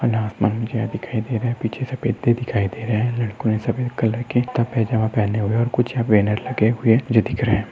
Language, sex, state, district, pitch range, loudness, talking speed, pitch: Hindi, male, Maharashtra, Solapur, 110-120 Hz, -21 LUFS, 280 wpm, 115 Hz